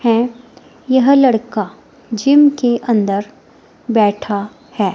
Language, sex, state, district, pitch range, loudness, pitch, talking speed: Hindi, female, Himachal Pradesh, Shimla, 210-260 Hz, -15 LUFS, 235 Hz, 95 wpm